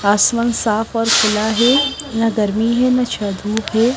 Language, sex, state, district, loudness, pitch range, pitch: Hindi, female, Himachal Pradesh, Shimla, -16 LUFS, 215-240 Hz, 225 Hz